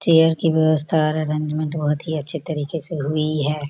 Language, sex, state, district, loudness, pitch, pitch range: Hindi, female, Bihar, Gopalganj, -19 LUFS, 155 Hz, 150-160 Hz